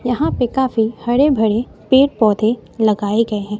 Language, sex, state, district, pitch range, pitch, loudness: Hindi, female, Bihar, West Champaran, 215-250 Hz, 230 Hz, -16 LUFS